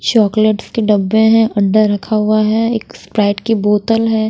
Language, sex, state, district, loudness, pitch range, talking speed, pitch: Hindi, female, Bihar, Patna, -13 LUFS, 210-225 Hz, 180 wpm, 215 Hz